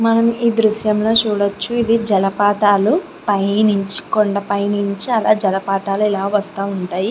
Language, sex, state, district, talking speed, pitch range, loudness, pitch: Telugu, female, Andhra Pradesh, Chittoor, 120 wpm, 200-220 Hz, -17 LUFS, 205 Hz